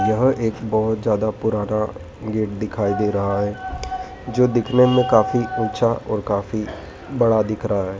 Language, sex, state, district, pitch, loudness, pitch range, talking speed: Hindi, male, Madhya Pradesh, Dhar, 110 Hz, -20 LUFS, 105-115 Hz, 155 wpm